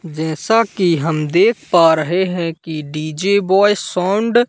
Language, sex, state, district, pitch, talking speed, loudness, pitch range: Hindi, male, Madhya Pradesh, Katni, 175 Hz, 160 wpm, -16 LUFS, 160-200 Hz